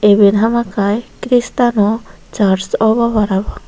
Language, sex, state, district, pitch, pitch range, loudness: Chakma, female, Tripura, Unakoti, 215 Hz, 200-235 Hz, -14 LUFS